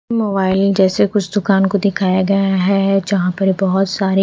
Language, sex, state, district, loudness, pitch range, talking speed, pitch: Hindi, female, Odisha, Khordha, -15 LUFS, 190-200 Hz, 185 wpm, 195 Hz